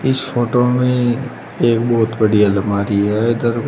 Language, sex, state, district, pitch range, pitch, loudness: Hindi, male, Uttar Pradesh, Shamli, 105-125 Hz, 115 Hz, -16 LUFS